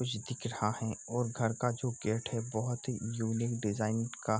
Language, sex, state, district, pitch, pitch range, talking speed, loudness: Hindi, male, Bihar, East Champaran, 115 Hz, 110-120 Hz, 215 wpm, -35 LUFS